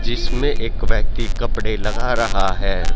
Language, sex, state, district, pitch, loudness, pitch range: Hindi, male, Haryana, Rohtak, 110 Hz, -22 LUFS, 100-120 Hz